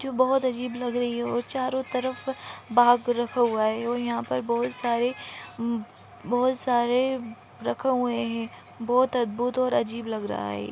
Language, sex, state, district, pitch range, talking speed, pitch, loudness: Hindi, female, Maharashtra, Nagpur, 235-255 Hz, 185 wpm, 240 Hz, -26 LUFS